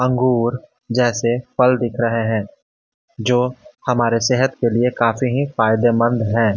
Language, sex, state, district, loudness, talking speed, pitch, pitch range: Hindi, male, Bihar, Patna, -18 LUFS, 135 wpm, 120 Hz, 115-125 Hz